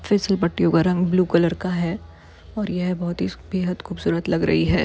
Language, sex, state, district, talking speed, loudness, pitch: Hindi, female, Chhattisgarh, Bilaspur, 210 wpm, -22 LUFS, 175 Hz